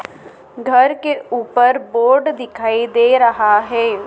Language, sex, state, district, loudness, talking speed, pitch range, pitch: Hindi, female, Madhya Pradesh, Dhar, -14 LUFS, 120 wpm, 230-260 Hz, 240 Hz